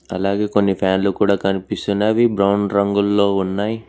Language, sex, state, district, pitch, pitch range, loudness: Telugu, male, Telangana, Mahabubabad, 100 Hz, 95-105 Hz, -18 LUFS